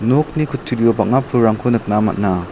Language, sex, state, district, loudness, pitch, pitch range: Garo, male, Meghalaya, South Garo Hills, -17 LUFS, 115 Hz, 105-135 Hz